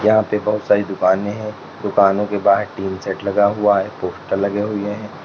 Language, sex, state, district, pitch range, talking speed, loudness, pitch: Hindi, male, Uttar Pradesh, Lalitpur, 95-105 Hz, 205 wpm, -18 LUFS, 100 Hz